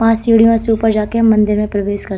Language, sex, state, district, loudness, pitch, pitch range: Hindi, female, Uttar Pradesh, Hamirpur, -13 LUFS, 220 Hz, 210-225 Hz